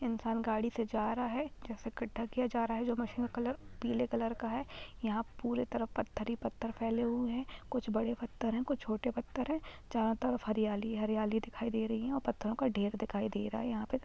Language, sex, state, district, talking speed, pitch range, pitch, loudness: Hindi, female, Bihar, Muzaffarpur, 240 wpm, 220-245 Hz, 230 Hz, -36 LUFS